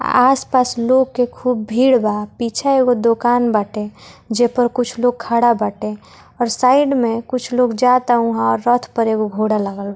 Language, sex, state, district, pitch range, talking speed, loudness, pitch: Bhojpuri, female, Bihar, Muzaffarpur, 220-250 Hz, 180 wpm, -16 LUFS, 240 Hz